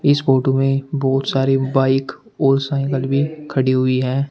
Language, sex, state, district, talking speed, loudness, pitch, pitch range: Hindi, male, Uttar Pradesh, Shamli, 165 wpm, -18 LUFS, 135 Hz, 135-140 Hz